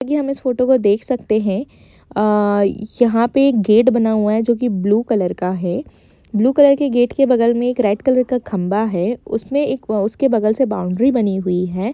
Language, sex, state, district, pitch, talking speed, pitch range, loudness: Hindi, female, Jharkhand, Jamtara, 225 Hz, 205 wpm, 205-255 Hz, -17 LUFS